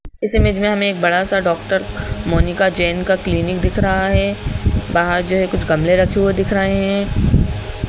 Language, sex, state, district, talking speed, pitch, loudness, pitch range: Hindi, male, Madhya Pradesh, Bhopal, 190 wpm, 185 Hz, -17 LUFS, 165-195 Hz